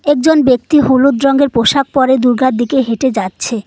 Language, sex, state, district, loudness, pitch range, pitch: Bengali, female, West Bengal, Cooch Behar, -12 LUFS, 245-275 Hz, 260 Hz